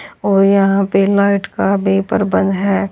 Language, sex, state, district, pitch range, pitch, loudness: Hindi, female, Haryana, Charkhi Dadri, 195-200 Hz, 195 Hz, -14 LUFS